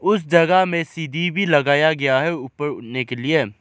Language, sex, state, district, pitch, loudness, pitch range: Hindi, male, Arunachal Pradesh, Lower Dibang Valley, 155 Hz, -19 LUFS, 135-170 Hz